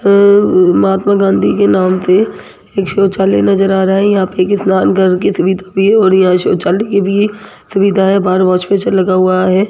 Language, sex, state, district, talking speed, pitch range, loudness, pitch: Hindi, female, Rajasthan, Jaipur, 160 wpm, 185-200 Hz, -11 LUFS, 190 Hz